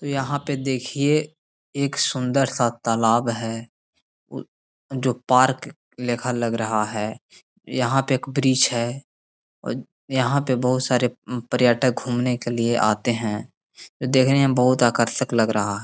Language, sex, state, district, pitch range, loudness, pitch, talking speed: Hindi, male, Bihar, Gaya, 115-130 Hz, -22 LUFS, 125 Hz, 150 wpm